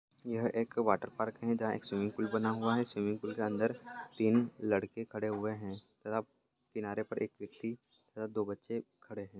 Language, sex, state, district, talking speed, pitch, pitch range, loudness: Hindi, male, Chhattisgarh, Bilaspur, 190 wpm, 110 Hz, 105-115 Hz, -36 LUFS